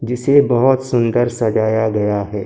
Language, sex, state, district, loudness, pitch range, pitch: Hindi, male, Maharashtra, Gondia, -15 LUFS, 110-125 Hz, 120 Hz